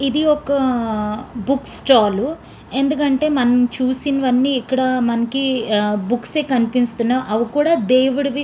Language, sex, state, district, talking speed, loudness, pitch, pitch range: Telugu, female, Andhra Pradesh, Srikakulam, 130 wpm, -18 LUFS, 255 Hz, 235-275 Hz